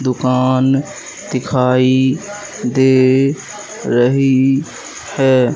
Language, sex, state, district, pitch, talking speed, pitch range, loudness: Hindi, male, Madhya Pradesh, Katni, 130 Hz, 55 wpm, 130-140 Hz, -14 LUFS